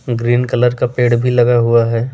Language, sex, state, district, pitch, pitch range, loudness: Hindi, male, Delhi, New Delhi, 120 Hz, 120-125 Hz, -14 LUFS